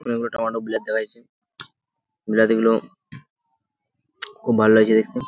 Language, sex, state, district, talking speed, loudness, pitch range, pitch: Bengali, male, West Bengal, Purulia, 125 wpm, -20 LUFS, 110-115 Hz, 110 Hz